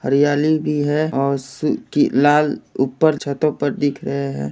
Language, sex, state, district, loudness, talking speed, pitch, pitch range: Hindi, male, Jharkhand, Jamtara, -19 LUFS, 160 wpm, 145 Hz, 135-150 Hz